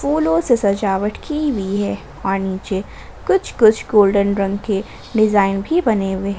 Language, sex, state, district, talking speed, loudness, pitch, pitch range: Hindi, female, Jharkhand, Ranchi, 160 wpm, -18 LUFS, 200 Hz, 195-235 Hz